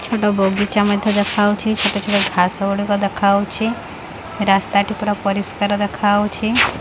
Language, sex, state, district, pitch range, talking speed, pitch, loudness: Odia, female, Odisha, Khordha, 200-210 Hz, 125 wpm, 205 Hz, -17 LUFS